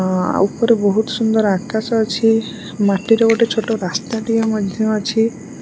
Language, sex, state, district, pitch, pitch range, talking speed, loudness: Odia, female, Odisha, Malkangiri, 220 Hz, 205-225 Hz, 150 wpm, -17 LUFS